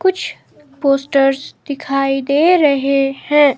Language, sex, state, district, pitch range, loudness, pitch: Hindi, male, Himachal Pradesh, Shimla, 275-295 Hz, -15 LUFS, 275 Hz